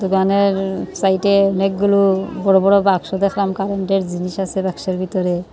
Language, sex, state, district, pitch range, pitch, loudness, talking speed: Bengali, female, Tripura, Unakoti, 190-200 Hz, 195 Hz, -17 LUFS, 150 wpm